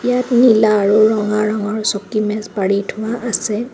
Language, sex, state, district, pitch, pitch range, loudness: Assamese, female, Assam, Kamrup Metropolitan, 215 Hz, 210-230 Hz, -16 LUFS